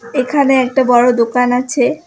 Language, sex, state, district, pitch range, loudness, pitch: Bengali, female, West Bengal, Alipurduar, 245-265 Hz, -13 LUFS, 250 Hz